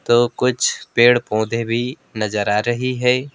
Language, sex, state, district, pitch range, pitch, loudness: Hindi, male, West Bengal, Alipurduar, 110-125 Hz, 120 Hz, -18 LUFS